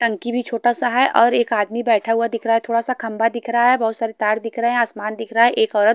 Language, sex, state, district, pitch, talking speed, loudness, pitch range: Hindi, female, Haryana, Charkhi Dadri, 230 Hz, 320 wpm, -19 LUFS, 225-240 Hz